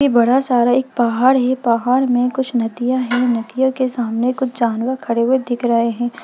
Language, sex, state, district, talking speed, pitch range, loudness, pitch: Hindi, female, Bihar, Jamui, 190 wpm, 235-260 Hz, -17 LUFS, 245 Hz